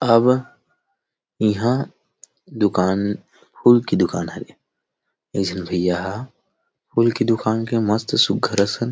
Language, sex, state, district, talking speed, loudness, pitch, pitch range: Chhattisgarhi, male, Chhattisgarh, Rajnandgaon, 120 wpm, -20 LUFS, 110 Hz, 100-120 Hz